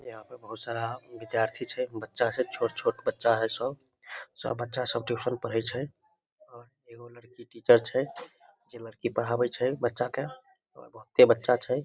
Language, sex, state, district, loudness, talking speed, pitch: Maithili, male, Bihar, Samastipur, -28 LUFS, 160 wpm, 125 Hz